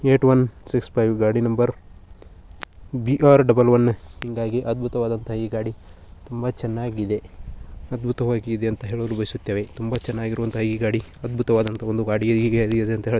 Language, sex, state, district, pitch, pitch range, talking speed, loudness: Kannada, male, Karnataka, Bijapur, 115 Hz, 105-120 Hz, 125 wpm, -22 LUFS